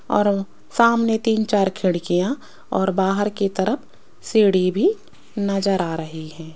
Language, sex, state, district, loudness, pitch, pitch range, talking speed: Hindi, female, Rajasthan, Jaipur, -20 LUFS, 200 Hz, 185-220 Hz, 135 wpm